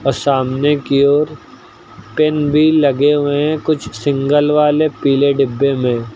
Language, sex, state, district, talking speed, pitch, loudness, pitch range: Hindi, male, Uttar Pradesh, Lucknow, 135 wpm, 145 Hz, -14 LUFS, 135-150 Hz